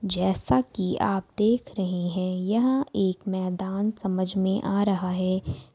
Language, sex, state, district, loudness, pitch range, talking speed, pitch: Hindi, female, Jharkhand, Sahebganj, -26 LUFS, 185-205 Hz, 145 wpm, 190 Hz